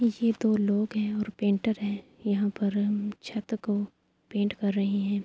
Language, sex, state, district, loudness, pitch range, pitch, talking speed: Urdu, female, Andhra Pradesh, Anantapur, -28 LUFS, 205-215 Hz, 205 Hz, 170 wpm